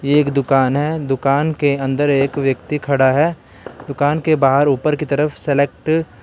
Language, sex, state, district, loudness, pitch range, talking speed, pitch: Hindi, male, Karnataka, Bangalore, -17 LUFS, 135-150 Hz, 175 wpm, 145 Hz